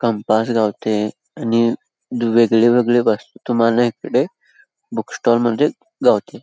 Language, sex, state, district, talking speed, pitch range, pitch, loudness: Marathi, male, Karnataka, Belgaum, 95 wpm, 115-120 Hz, 115 Hz, -18 LUFS